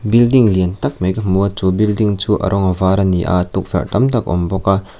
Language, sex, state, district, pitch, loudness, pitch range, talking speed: Mizo, male, Mizoram, Aizawl, 95 Hz, -15 LUFS, 90-105 Hz, 265 wpm